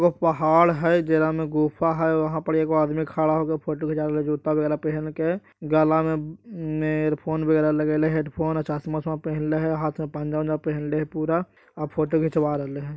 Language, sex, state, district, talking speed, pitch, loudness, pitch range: Magahi, male, Bihar, Jahanabad, 210 wpm, 155 Hz, -24 LUFS, 155-160 Hz